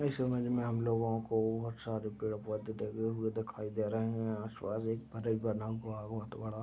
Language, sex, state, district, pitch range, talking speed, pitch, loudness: Hindi, male, Uttar Pradesh, Deoria, 110-115 Hz, 215 wpm, 110 Hz, -37 LUFS